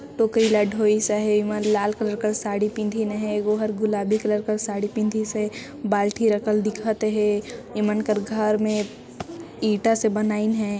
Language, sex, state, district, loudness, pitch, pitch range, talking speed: Chhattisgarhi, female, Chhattisgarh, Sarguja, -23 LUFS, 215 Hz, 210-220 Hz, 180 wpm